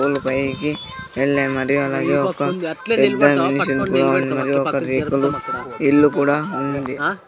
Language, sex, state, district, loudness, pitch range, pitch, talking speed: Telugu, male, Andhra Pradesh, Sri Satya Sai, -19 LUFS, 135-145 Hz, 140 Hz, 115 wpm